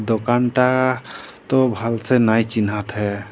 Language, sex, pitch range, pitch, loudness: Sadri, male, 110-125 Hz, 115 Hz, -19 LUFS